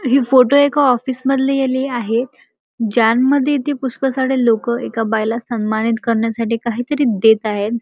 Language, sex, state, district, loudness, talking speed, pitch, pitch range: Marathi, male, Maharashtra, Chandrapur, -16 LUFS, 145 wpm, 245 Hz, 230-270 Hz